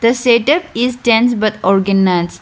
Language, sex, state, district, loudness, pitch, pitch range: English, female, Arunachal Pradesh, Lower Dibang Valley, -13 LUFS, 230 Hz, 195-245 Hz